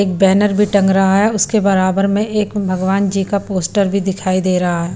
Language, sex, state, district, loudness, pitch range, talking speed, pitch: Hindi, female, Punjab, Pathankot, -15 LUFS, 185-205 Hz, 230 wpm, 195 Hz